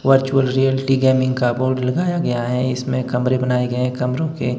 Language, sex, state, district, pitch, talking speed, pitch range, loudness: Hindi, male, Himachal Pradesh, Shimla, 130 Hz, 195 wpm, 125-135 Hz, -19 LUFS